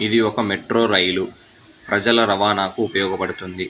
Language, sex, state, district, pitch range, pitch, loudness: Telugu, male, Telangana, Hyderabad, 95-115 Hz, 105 Hz, -19 LUFS